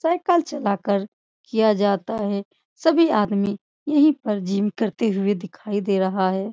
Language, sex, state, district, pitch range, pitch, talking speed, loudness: Hindi, female, Bihar, Supaul, 200-255 Hz, 205 Hz, 155 wpm, -22 LUFS